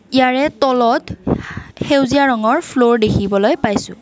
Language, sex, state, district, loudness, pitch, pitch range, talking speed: Assamese, female, Assam, Kamrup Metropolitan, -15 LUFS, 255 Hz, 235-275 Hz, 105 wpm